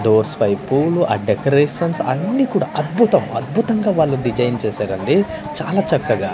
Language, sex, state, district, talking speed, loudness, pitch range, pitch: Telugu, male, Andhra Pradesh, Manyam, 130 wpm, -18 LUFS, 130-195 Hz, 155 Hz